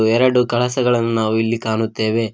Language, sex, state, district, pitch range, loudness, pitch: Kannada, male, Karnataka, Koppal, 110-120 Hz, -17 LUFS, 115 Hz